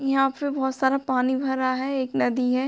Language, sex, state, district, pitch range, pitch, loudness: Hindi, female, Bihar, Muzaffarpur, 260-270 Hz, 265 Hz, -24 LUFS